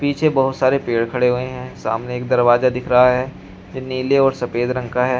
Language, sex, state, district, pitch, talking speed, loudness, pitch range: Hindi, male, Uttar Pradesh, Shamli, 125 Hz, 230 wpm, -18 LUFS, 120-130 Hz